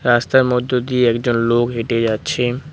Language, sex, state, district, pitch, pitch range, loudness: Bengali, male, West Bengal, Cooch Behar, 120 Hz, 115-125 Hz, -17 LUFS